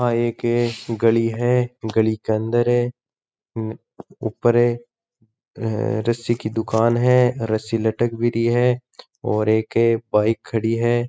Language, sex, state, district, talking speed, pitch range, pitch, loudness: Rajasthani, male, Rajasthan, Churu, 125 wpm, 110-120 Hz, 115 Hz, -20 LUFS